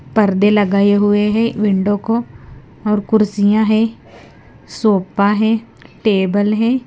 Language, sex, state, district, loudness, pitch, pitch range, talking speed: Hindi, female, Himachal Pradesh, Shimla, -15 LUFS, 210 Hz, 205-220 Hz, 115 wpm